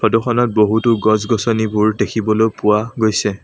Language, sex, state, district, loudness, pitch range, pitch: Assamese, male, Assam, Sonitpur, -16 LUFS, 105-115 Hz, 110 Hz